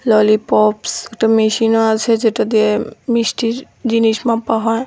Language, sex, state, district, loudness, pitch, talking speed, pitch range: Bengali, female, Tripura, West Tripura, -15 LUFS, 225 Hz, 125 wpm, 220-230 Hz